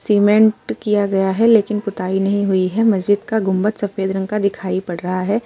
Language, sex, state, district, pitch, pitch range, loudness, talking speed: Hindi, female, Uttar Pradesh, Muzaffarnagar, 205 Hz, 190-210 Hz, -17 LUFS, 210 wpm